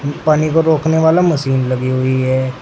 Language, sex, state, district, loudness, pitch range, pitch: Hindi, male, Uttar Pradesh, Saharanpur, -14 LUFS, 130-160 Hz, 145 Hz